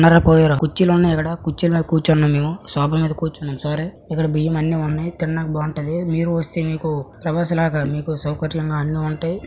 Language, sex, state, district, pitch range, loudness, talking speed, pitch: Telugu, male, Andhra Pradesh, Srikakulam, 150-165 Hz, -19 LUFS, 170 wpm, 160 Hz